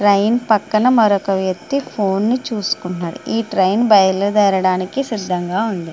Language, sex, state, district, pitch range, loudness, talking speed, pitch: Telugu, female, Andhra Pradesh, Guntur, 190-225 Hz, -17 LUFS, 130 wpm, 205 Hz